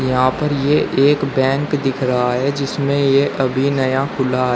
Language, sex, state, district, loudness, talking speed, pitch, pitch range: Hindi, male, Uttar Pradesh, Shamli, -17 LUFS, 185 wpm, 135 Hz, 130-140 Hz